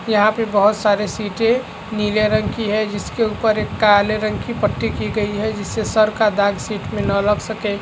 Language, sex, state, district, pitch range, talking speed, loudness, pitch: Hindi, male, Chhattisgarh, Raigarh, 205-220 Hz, 215 wpm, -18 LUFS, 215 Hz